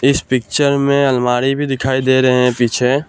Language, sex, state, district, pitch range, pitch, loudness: Hindi, male, Assam, Kamrup Metropolitan, 125-140 Hz, 130 Hz, -15 LUFS